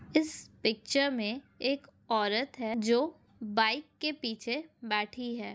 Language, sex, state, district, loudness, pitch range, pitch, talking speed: Hindi, female, Andhra Pradesh, Anantapur, -32 LUFS, 220-280 Hz, 240 Hz, 130 wpm